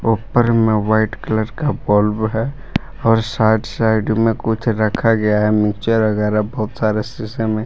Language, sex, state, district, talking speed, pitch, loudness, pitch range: Hindi, male, Jharkhand, Palamu, 155 wpm, 110 Hz, -17 LUFS, 105-115 Hz